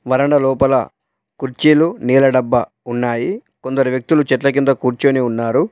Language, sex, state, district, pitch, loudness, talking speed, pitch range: Telugu, male, Telangana, Adilabad, 135 Hz, -15 LUFS, 125 wpm, 125-140 Hz